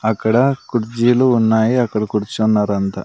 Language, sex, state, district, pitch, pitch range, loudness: Telugu, male, Andhra Pradesh, Sri Satya Sai, 110 Hz, 105-120 Hz, -16 LUFS